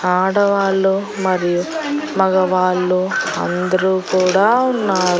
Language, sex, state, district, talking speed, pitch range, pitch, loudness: Telugu, female, Andhra Pradesh, Annamaya, 70 wpm, 185-200 Hz, 190 Hz, -16 LUFS